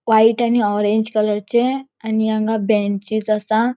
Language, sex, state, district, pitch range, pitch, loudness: Konkani, female, Goa, North and South Goa, 210-230 Hz, 220 Hz, -18 LUFS